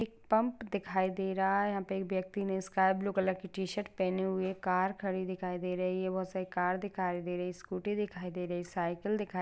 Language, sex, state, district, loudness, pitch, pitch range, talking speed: Hindi, female, Maharashtra, Sindhudurg, -34 LUFS, 190 Hz, 185-200 Hz, 225 wpm